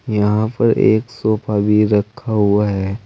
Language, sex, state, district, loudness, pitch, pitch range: Hindi, male, Uttar Pradesh, Saharanpur, -16 LUFS, 105 Hz, 105-110 Hz